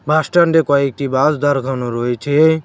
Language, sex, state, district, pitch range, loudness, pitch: Bengali, male, West Bengal, Cooch Behar, 135-160 Hz, -15 LUFS, 145 Hz